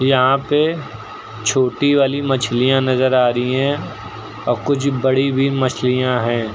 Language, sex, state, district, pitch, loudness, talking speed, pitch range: Hindi, male, Uttar Pradesh, Lucknow, 130 Hz, -17 LUFS, 140 wpm, 120-135 Hz